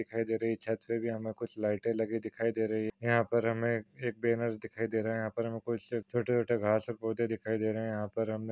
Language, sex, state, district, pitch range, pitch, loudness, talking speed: Hindi, male, Maharashtra, Pune, 110-115 Hz, 115 Hz, -33 LUFS, 275 wpm